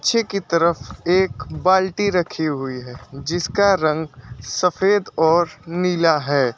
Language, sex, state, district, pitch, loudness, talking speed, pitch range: Hindi, male, Uttar Pradesh, Lucknow, 165 Hz, -19 LUFS, 125 wpm, 140-185 Hz